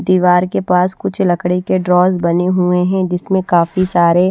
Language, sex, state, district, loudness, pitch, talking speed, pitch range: Hindi, female, Haryana, Rohtak, -14 LUFS, 180 Hz, 180 wpm, 180-185 Hz